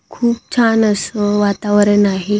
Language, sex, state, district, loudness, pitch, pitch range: Marathi, female, Maharashtra, Solapur, -15 LUFS, 205 Hz, 205-225 Hz